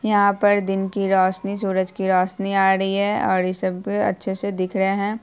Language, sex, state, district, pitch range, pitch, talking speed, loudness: Hindi, female, Bihar, Purnia, 190-200 Hz, 195 Hz, 205 wpm, -21 LUFS